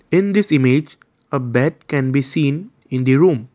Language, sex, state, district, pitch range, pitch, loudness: English, male, Assam, Kamrup Metropolitan, 130-155 Hz, 140 Hz, -17 LUFS